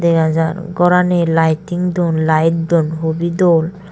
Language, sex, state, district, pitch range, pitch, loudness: Chakma, female, Tripura, Dhalai, 160-175 Hz, 170 Hz, -15 LUFS